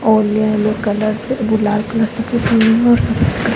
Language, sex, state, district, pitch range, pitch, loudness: Hindi, female, Bihar, Jahanabad, 215-225 Hz, 220 Hz, -15 LUFS